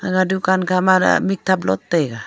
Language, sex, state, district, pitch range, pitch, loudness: Wancho, female, Arunachal Pradesh, Longding, 170-190 Hz, 185 Hz, -17 LUFS